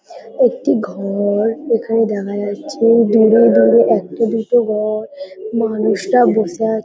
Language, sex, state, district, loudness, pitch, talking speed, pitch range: Bengali, female, West Bengal, Kolkata, -15 LUFS, 220 Hz, 115 wpm, 205-230 Hz